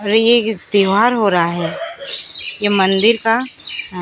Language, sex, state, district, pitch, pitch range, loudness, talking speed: Hindi, female, Odisha, Sambalpur, 215 Hz, 195-235 Hz, -16 LUFS, 150 wpm